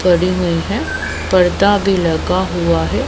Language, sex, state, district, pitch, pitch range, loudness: Hindi, female, Punjab, Pathankot, 180 Hz, 170-185 Hz, -15 LUFS